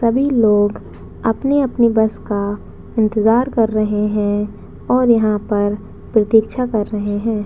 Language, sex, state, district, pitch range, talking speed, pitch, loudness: Hindi, female, Chhattisgarh, Raigarh, 210-230 Hz, 135 wpm, 220 Hz, -17 LUFS